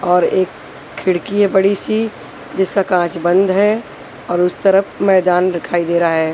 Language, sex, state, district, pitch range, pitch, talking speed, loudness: Hindi, female, Haryana, Rohtak, 175-195 Hz, 185 Hz, 170 wpm, -15 LUFS